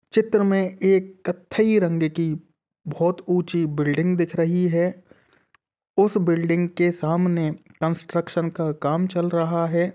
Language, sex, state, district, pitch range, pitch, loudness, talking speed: Hindi, male, Uttar Pradesh, Etah, 165-180 Hz, 170 Hz, -22 LUFS, 135 wpm